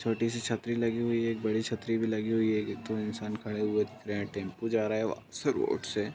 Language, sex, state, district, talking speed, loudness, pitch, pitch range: Hindi, male, Bihar, Purnia, 265 wpm, -32 LUFS, 110 Hz, 105-115 Hz